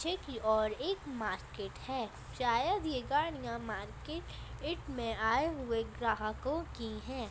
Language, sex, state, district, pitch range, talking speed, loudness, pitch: Hindi, female, Rajasthan, Nagaur, 220-290 Hz, 140 wpm, -36 LUFS, 240 Hz